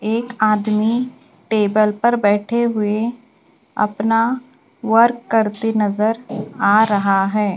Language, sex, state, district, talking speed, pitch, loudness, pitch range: Hindi, female, Maharashtra, Gondia, 105 wpm, 220 Hz, -17 LUFS, 210-230 Hz